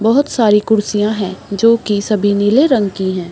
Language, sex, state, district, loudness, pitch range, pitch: Hindi, female, Bihar, Saharsa, -14 LUFS, 200-225 Hz, 210 Hz